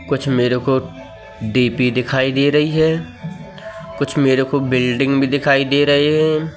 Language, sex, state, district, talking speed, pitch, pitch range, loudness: Hindi, male, Madhya Pradesh, Katni, 155 wpm, 140 Hz, 130-155 Hz, -16 LUFS